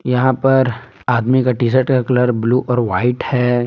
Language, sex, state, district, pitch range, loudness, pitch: Hindi, male, Jharkhand, Palamu, 120-130 Hz, -16 LUFS, 125 Hz